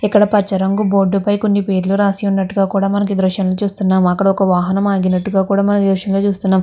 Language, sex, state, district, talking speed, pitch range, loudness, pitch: Telugu, female, Andhra Pradesh, Guntur, 210 wpm, 190-200 Hz, -15 LUFS, 195 Hz